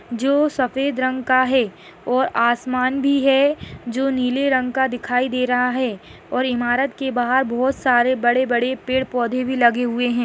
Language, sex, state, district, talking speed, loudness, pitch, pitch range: Hindi, female, Chhattisgarh, Rajnandgaon, 175 wpm, -19 LUFS, 255 Hz, 245-265 Hz